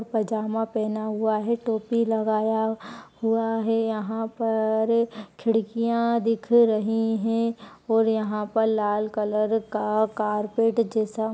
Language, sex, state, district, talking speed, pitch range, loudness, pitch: Hindi, female, Uttar Pradesh, Etah, 120 wpm, 215-225 Hz, -24 LUFS, 220 Hz